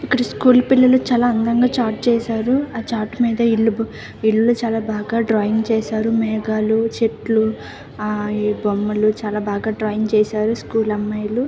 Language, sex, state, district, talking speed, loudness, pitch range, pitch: Telugu, female, Andhra Pradesh, Visakhapatnam, 130 wpm, -18 LUFS, 215-235 Hz, 225 Hz